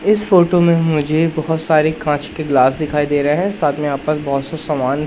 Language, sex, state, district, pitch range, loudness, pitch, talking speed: Hindi, male, Madhya Pradesh, Katni, 145-165 Hz, -16 LUFS, 155 Hz, 225 wpm